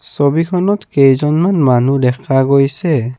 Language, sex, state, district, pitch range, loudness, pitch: Assamese, male, Assam, Kamrup Metropolitan, 135-165 Hz, -13 LUFS, 140 Hz